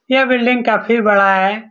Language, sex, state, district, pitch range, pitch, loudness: Hindi, male, Bihar, Saran, 205-250 Hz, 220 Hz, -13 LUFS